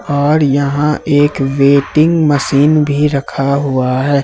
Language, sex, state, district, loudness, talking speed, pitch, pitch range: Hindi, male, Jharkhand, Ranchi, -12 LUFS, 125 wpm, 145 Hz, 140-150 Hz